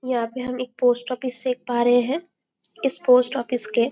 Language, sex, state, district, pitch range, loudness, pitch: Hindi, female, Chhattisgarh, Bastar, 245-255 Hz, -22 LUFS, 250 Hz